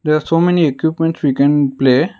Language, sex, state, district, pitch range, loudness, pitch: English, male, Karnataka, Bangalore, 140-165 Hz, -14 LUFS, 155 Hz